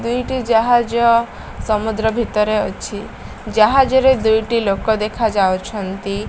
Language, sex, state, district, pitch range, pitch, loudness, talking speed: Odia, female, Odisha, Malkangiri, 210-235 Hz, 220 Hz, -17 LUFS, 95 wpm